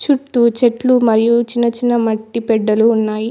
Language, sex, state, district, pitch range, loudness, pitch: Telugu, female, Telangana, Mahabubabad, 225-240 Hz, -14 LUFS, 235 Hz